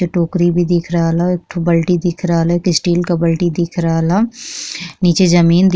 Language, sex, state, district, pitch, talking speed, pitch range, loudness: Bhojpuri, female, Uttar Pradesh, Gorakhpur, 175 Hz, 250 wpm, 170-180 Hz, -15 LUFS